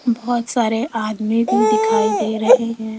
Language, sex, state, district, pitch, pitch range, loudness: Hindi, female, Rajasthan, Jaipur, 225 Hz, 220-240 Hz, -17 LUFS